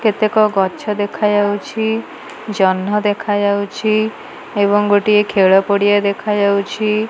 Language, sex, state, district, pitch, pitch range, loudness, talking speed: Odia, female, Odisha, Malkangiri, 205 Hz, 200-215 Hz, -15 LUFS, 110 wpm